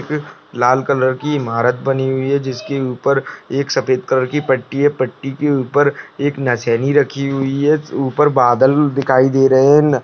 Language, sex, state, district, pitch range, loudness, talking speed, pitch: Hindi, male, Rajasthan, Nagaur, 130-145 Hz, -16 LUFS, 175 wpm, 135 Hz